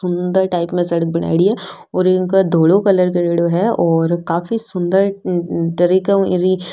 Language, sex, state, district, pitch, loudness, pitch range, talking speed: Rajasthani, female, Rajasthan, Nagaur, 180 Hz, -16 LUFS, 170-190 Hz, 150 wpm